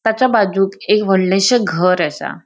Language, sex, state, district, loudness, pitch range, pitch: Konkani, female, Goa, North and South Goa, -15 LUFS, 190-220 Hz, 195 Hz